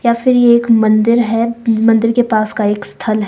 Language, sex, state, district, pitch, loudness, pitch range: Hindi, female, Himachal Pradesh, Shimla, 225 Hz, -12 LUFS, 215-235 Hz